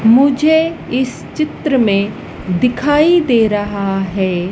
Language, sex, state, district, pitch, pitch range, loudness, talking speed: Hindi, female, Madhya Pradesh, Dhar, 240 Hz, 200-290 Hz, -14 LUFS, 105 wpm